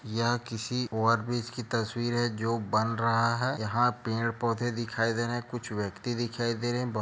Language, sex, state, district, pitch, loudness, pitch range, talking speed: Hindi, male, Chhattisgarh, Raigarh, 115 Hz, -30 LUFS, 115-120 Hz, 205 wpm